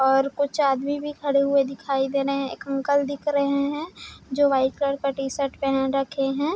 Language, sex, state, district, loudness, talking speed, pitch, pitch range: Hindi, female, Chhattisgarh, Bilaspur, -24 LUFS, 240 wpm, 275 Hz, 270-285 Hz